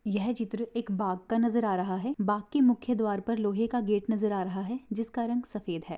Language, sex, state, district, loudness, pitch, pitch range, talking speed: Hindi, female, Maharashtra, Nagpur, -30 LUFS, 220 Hz, 205-235 Hz, 250 wpm